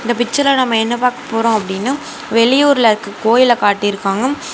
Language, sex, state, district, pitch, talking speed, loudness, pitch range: Tamil, female, Tamil Nadu, Namakkal, 240 Hz, 160 wpm, -14 LUFS, 220-265 Hz